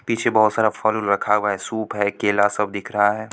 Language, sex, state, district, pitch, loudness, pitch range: Hindi, female, Bihar, Supaul, 105 Hz, -20 LUFS, 100-110 Hz